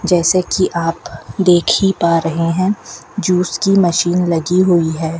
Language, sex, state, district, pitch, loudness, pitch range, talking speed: Hindi, female, Rajasthan, Bikaner, 175 Hz, -15 LUFS, 170-185 Hz, 160 wpm